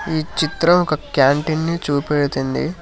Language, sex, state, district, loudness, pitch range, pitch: Telugu, male, Telangana, Hyderabad, -18 LUFS, 145-165 Hz, 155 Hz